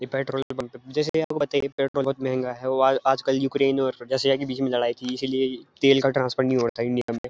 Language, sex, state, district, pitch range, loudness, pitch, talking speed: Hindi, male, Uttarakhand, Uttarkashi, 130-135 Hz, -24 LUFS, 135 Hz, 270 wpm